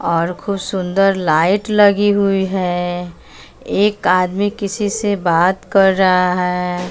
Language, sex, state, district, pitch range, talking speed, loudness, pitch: Hindi, female, Bihar, West Champaran, 180-200 Hz, 130 wpm, -16 LUFS, 190 Hz